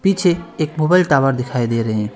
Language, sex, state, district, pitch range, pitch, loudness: Hindi, male, West Bengal, Alipurduar, 120-175 Hz, 145 Hz, -17 LUFS